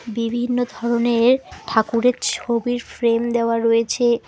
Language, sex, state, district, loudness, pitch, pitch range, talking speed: Bengali, female, West Bengal, Alipurduar, -20 LUFS, 235 Hz, 230-245 Hz, 100 wpm